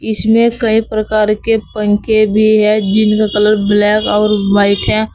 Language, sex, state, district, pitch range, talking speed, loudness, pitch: Hindi, female, Uttar Pradesh, Saharanpur, 210-220 Hz, 150 wpm, -12 LUFS, 215 Hz